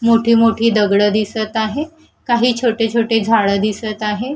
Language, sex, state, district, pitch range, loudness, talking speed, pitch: Marathi, female, Maharashtra, Gondia, 215-235 Hz, -16 LUFS, 150 wpm, 225 Hz